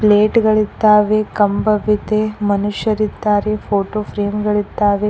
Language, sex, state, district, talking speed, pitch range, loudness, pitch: Kannada, female, Karnataka, Koppal, 80 wpm, 205-215 Hz, -16 LUFS, 210 Hz